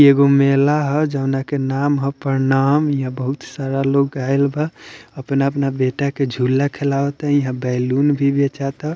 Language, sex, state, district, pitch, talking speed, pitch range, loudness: Bhojpuri, male, Bihar, Muzaffarpur, 140 Hz, 160 wpm, 135-145 Hz, -18 LUFS